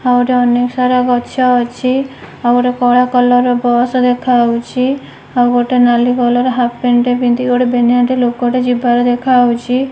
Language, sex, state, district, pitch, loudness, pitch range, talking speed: Odia, female, Odisha, Nuapada, 245 Hz, -12 LUFS, 245-250 Hz, 180 wpm